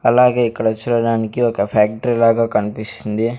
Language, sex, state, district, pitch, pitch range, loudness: Telugu, male, Andhra Pradesh, Sri Satya Sai, 115 Hz, 110-120 Hz, -17 LUFS